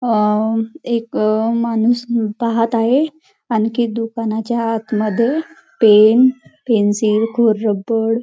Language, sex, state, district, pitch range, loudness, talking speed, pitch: Marathi, female, Maharashtra, Nagpur, 220-240 Hz, -16 LUFS, 100 wpm, 230 Hz